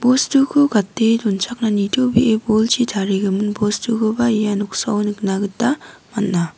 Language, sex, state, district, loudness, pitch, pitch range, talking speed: Garo, female, Meghalaya, West Garo Hills, -18 LUFS, 215 Hz, 200-240 Hz, 110 wpm